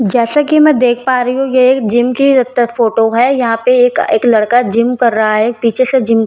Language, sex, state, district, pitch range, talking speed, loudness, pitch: Hindi, female, Bihar, Katihar, 230-260 Hz, 295 wpm, -11 LUFS, 245 Hz